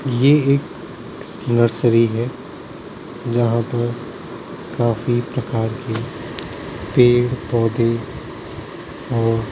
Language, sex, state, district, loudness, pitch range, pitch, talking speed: Hindi, male, Maharashtra, Mumbai Suburban, -19 LUFS, 115-125 Hz, 120 Hz, 80 wpm